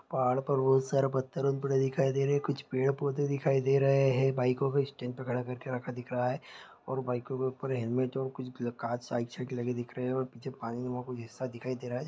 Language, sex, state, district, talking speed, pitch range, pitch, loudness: Hindi, male, Bihar, Saharsa, 215 wpm, 125-135 Hz, 130 Hz, -32 LUFS